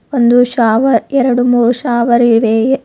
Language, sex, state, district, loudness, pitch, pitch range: Kannada, female, Karnataka, Bidar, -11 LUFS, 240 Hz, 235-255 Hz